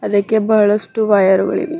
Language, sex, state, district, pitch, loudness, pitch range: Kannada, female, Karnataka, Bidar, 210 Hz, -14 LUFS, 200-220 Hz